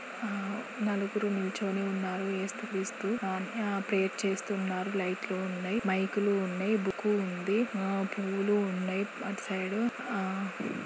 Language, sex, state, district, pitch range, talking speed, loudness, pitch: Telugu, female, Andhra Pradesh, Guntur, 190-205 Hz, 110 wpm, -32 LUFS, 195 Hz